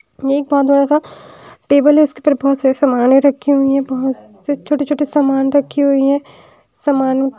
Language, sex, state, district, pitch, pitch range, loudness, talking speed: Hindi, female, Haryana, Rohtak, 280 Hz, 270-285 Hz, -14 LUFS, 195 wpm